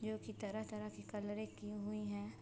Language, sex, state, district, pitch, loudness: Hindi, female, Bihar, Sitamarhi, 205 Hz, -46 LUFS